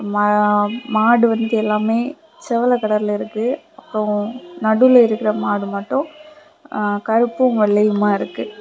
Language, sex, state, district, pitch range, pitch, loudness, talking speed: Tamil, female, Tamil Nadu, Kanyakumari, 210-250 Hz, 220 Hz, -17 LUFS, 105 wpm